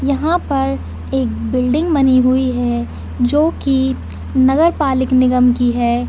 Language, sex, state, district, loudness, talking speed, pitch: Hindi, female, Chhattisgarh, Bilaspur, -15 LUFS, 140 wpm, 255 Hz